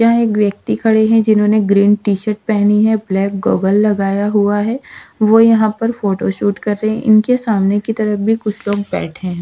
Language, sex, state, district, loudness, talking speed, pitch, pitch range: Hindi, female, Odisha, Sambalpur, -14 LUFS, 210 wpm, 210 Hz, 200-220 Hz